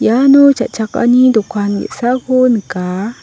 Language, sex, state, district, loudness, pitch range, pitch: Garo, female, Meghalaya, West Garo Hills, -12 LUFS, 210-255 Hz, 240 Hz